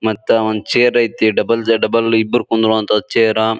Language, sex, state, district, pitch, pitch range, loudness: Kannada, male, Karnataka, Bijapur, 110 Hz, 110-115 Hz, -15 LUFS